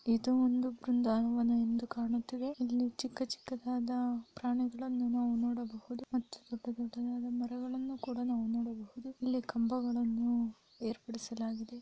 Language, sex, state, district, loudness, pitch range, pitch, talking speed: Kannada, female, Karnataka, Mysore, -36 LUFS, 235-250 Hz, 240 Hz, 105 wpm